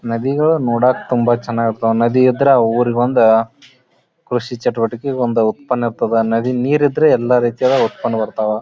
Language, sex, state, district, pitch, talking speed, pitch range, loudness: Kannada, male, Karnataka, Bijapur, 120 Hz, 155 wpm, 115-130 Hz, -15 LUFS